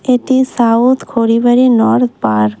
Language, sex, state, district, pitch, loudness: Bengali, female, West Bengal, Cooch Behar, 235 Hz, -11 LUFS